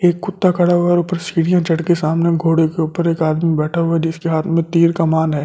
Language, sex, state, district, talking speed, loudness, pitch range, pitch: Hindi, male, Delhi, New Delhi, 265 wpm, -16 LUFS, 160-175 Hz, 165 Hz